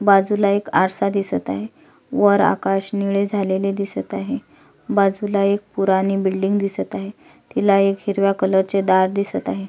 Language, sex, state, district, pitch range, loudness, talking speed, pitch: Marathi, female, Maharashtra, Solapur, 190-200 Hz, -19 LUFS, 150 wpm, 195 Hz